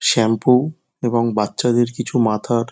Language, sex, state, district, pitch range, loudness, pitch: Bengali, male, West Bengal, Dakshin Dinajpur, 115-125 Hz, -18 LUFS, 120 Hz